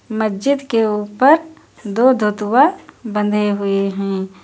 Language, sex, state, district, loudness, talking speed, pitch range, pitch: Hindi, female, Uttar Pradesh, Lucknow, -17 LUFS, 110 wpm, 205-260 Hz, 215 Hz